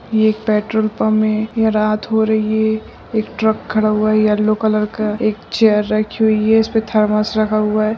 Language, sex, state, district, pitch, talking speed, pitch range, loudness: Hindi, female, Bihar, Jahanabad, 215 Hz, 210 wpm, 215-220 Hz, -16 LUFS